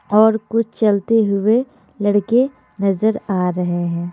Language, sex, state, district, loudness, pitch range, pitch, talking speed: Hindi, female, Haryana, Charkhi Dadri, -18 LUFS, 195-225 Hz, 205 Hz, 130 wpm